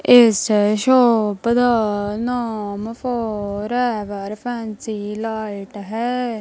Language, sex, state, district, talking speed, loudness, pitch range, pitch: Punjabi, female, Punjab, Kapurthala, 75 wpm, -19 LUFS, 210-240 Hz, 220 Hz